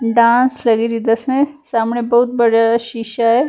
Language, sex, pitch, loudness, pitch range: Punjabi, female, 235 Hz, -15 LUFS, 230-245 Hz